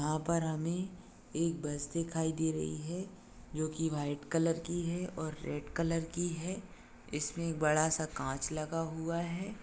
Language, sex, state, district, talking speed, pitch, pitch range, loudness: Hindi, male, Maharashtra, Dhule, 155 wpm, 165 Hz, 155-170 Hz, -36 LUFS